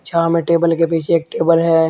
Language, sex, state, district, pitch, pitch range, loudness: Hindi, male, Uttar Pradesh, Shamli, 165 Hz, 165-170 Hz, -15 LUFS